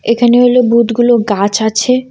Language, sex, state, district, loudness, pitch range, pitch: Bengali, female, Assam, Kamrup Metropolitan, -10 LUFS, 220-245 Hz, 240 Hz